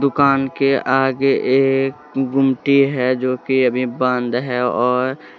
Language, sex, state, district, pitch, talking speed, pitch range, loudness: Hindi, male, Jharkhand, Deoghar, 135 Hz, 135 wpm, 125-135 Hz, -17 LUFS